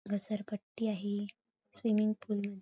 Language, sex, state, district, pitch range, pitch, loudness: Marathi, female, Maharashtra, Chandrapur, 205-220 Hz, 210 Hz, -36 LUFS